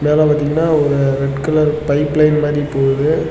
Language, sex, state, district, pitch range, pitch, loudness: Tamil, male, Tamil Nadu, Namakkal, 140-150 Hz, 150 Hz, -15 LUFS